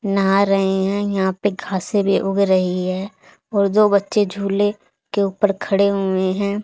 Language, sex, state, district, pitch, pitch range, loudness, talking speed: Hindi, female, Haryana, Charkhi Dadri, 195 Hz, 190-200 Hz, -19 LUFS, 170 wpm